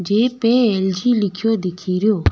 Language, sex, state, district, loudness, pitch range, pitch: Rajasthani, female, Rajasthan, Nagaur, -18 LUFS, 190-230 Hz, 210 Hz